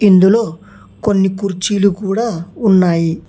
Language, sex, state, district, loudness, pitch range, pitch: Telugu, male, Telangana, Hyderabad, -14 LUFS, 185-205 Hz, 195 Hz